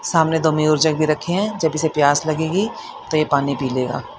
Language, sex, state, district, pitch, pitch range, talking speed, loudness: Hindi, female, Haryana, Charkhi Dadri, 155 Hz, 145-160 Hz, 245 wpm, -19 LUFS